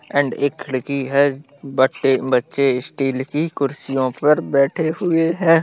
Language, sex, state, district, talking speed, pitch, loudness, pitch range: Hindi, male, Bihar, Lakhisarai, 140 wpm, 140 Hz, -19 LUFS, 135-150 Hz